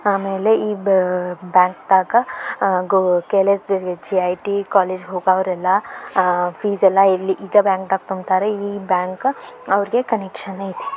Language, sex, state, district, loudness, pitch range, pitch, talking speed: Kannada, female, Karnataka, Belgaum, -18 LUFS, 185-200 Hz, 195 Hz, 125 wpm